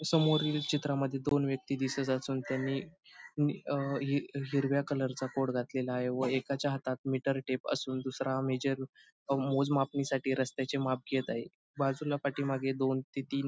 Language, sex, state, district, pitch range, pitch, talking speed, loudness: Marathi, male, Maharashtra, Sindhudurg, 130-140 Hz, 135 Hz, 160 wpm, -33 LUFS